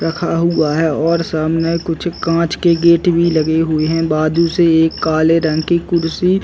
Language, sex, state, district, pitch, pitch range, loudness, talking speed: Hindi, male, Uttar Pradesh, Varanasi, 165 Hz, 160-170 Hz, -15 LUFS, 195 wpm